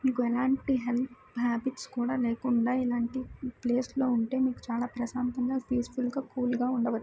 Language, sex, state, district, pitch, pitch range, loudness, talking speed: Telugu, female, Andhra Pradesh, Krishna, 250 Hz, 240-260 Hz, -30 LUFS, 160 wpm